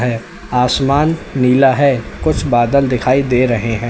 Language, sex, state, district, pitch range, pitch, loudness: Hindi, male, Uttar Pradesh, Lalitpur, 125-140 Hz, 130 Hz, -14 LUFS